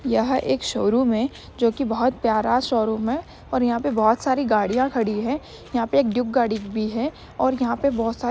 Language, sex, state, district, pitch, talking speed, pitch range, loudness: Hindi, female, Maharashtra, Chandrapur, 240 Hz, 215 wpm, 225-260 Hz, -22 LUFS